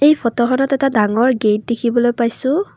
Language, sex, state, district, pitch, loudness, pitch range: Assamese, female, Assam, Kamrup Metropolitan, 240 Hz, -16 LUFS, 235-275 Hz